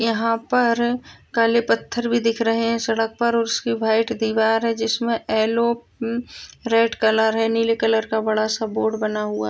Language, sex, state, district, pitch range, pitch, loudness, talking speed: Hindi, female, Bihar, Purnia, 220-230 Hz, 230 Hz, -21 LUFS, 185 wpm